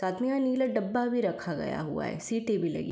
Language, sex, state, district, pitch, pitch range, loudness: Hindi, female, Uttar Pradesh, Varanasi, 240 Hz, 210-255 Hz, -30 LUFS